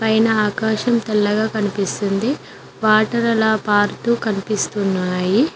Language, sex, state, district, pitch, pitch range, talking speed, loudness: Telugu, female, Telangana, Mahabubabad, 215 Hz, 205-225 Hz, 85 wpm, -18 LUFS